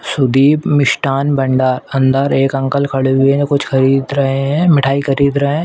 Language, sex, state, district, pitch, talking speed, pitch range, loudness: Hindi, female, Uttar Pradesh, Etah, 135 Hz, 180 wpm, 135-140 Hz, -13 LUFS